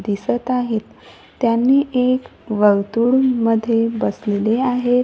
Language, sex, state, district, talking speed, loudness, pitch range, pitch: Marathi, female, Maharashtra, Gondia, 85 wpm, -18 LUFS, 220-250 Hz, 235 Hz